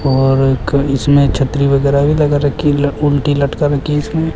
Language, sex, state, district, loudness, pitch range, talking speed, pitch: Hindi, male, Rajasthan, Jaipur, -13 LUFS, 140-145 Hz, 195 wpm, 145 Hz